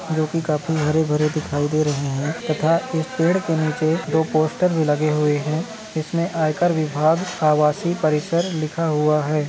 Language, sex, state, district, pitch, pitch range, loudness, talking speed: Hindi, male, Maharashtra, Nagpur, 155 Hz, 150-165 Hz, -21 LUFS, 175 wpm